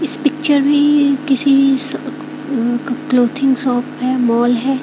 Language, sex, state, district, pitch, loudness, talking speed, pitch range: Hindi, female, Bihar, Katihar, 275 Hz, -15 LUFS, 135 wpm, 255-290 Hz